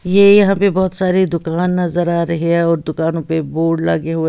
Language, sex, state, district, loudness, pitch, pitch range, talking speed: Hindi, female, Bihar, West Champaran, -15 LUFS, 170 Hz, 165-185 Hz, 225 wpm